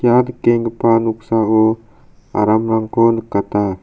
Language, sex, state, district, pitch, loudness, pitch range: Garo, male, Meghalaya, South Garo Hills, 115 Hz, -16 LUFS, 110-115 Hz